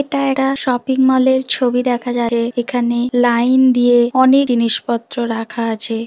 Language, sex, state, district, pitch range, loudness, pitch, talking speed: Bengali, female, West Bengal, Dakshin Dinajpur, 235-260 Hz, -15 LUFS, 245 Hz, 140 wpm